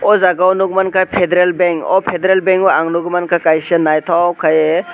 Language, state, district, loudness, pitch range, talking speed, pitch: Kokborok, Tripura, West Tripura, -13 LUFS, 170-185 Hz, 205 wpm, 180 Hz